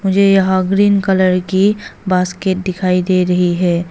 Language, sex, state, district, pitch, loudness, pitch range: Hindi, female, Arunachal Pradesh, Papum Pare, 185 Hz, -14 LUFS, 180-195 Hz